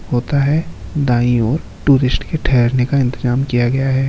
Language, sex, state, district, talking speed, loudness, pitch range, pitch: Hindi, male, Bihar, Darbhanga, 175 wpm, -16 LUFS, 120-140 Hz, 130 Hz